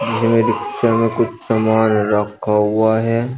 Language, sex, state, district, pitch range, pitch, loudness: Hindi, male, Uttar Pradesh, Shamli, 105-115 Hz, 110 Hz, -16 LUFS